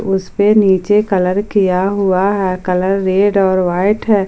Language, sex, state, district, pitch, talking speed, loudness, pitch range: Hindi, female, Jharkhand, Ranchi, 195 Hz, 155 wpm, -14 LUFS, 185-205 Hz